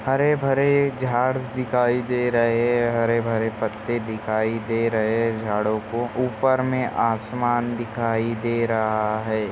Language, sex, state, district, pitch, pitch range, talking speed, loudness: Hindi, male, Maharashtra, Nagpur, 115 Hz, 110-125 Hz, 145 wpm, -22 LUFS